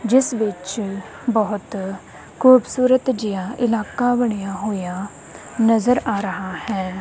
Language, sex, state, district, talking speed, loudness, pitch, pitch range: Punjabi, female, Punjab, Kapurthala, 105 wpm, -20 LUFS, 210 Hz, 195-245 Hz